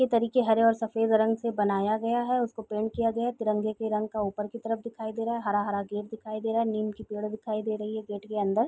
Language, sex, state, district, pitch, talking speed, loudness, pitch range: Hindi, female, Bihar, Gopalganj, 220 Hz, 330 wpm, -29 LUFS, 215-230 Hz